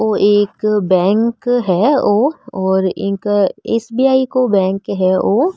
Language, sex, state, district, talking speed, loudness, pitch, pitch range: Marwari, female, Rajasthan, Nagaur, 140 wpm, -15 LUFS, 205 Hz, 190-235 Hz